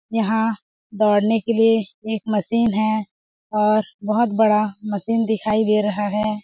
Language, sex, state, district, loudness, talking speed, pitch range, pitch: Hindi, female, Chhattisgarh, Balrampur, -20 LUFS, 140 wpm, 210-225 Hz, 215 Hz